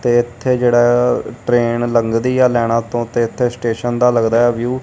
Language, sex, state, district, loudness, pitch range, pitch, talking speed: Punjabi, male, Punjab, Kapurthala, -15 LUFS, 115-120 Hz, 120 Hz, 200 wpm